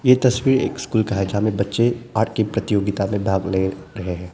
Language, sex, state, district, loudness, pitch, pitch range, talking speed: Hindi, male, Arunachal Pradesh, Papum Pare, -20 LUFS, 105 Hz, 95-115 Hz, 235 wpm